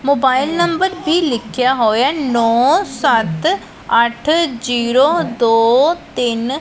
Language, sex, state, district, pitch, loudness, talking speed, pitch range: Punjabi, female, Punjab, Pathankot, 260 Hz, -15 LUFS, 110 wpm, 235-320 Hz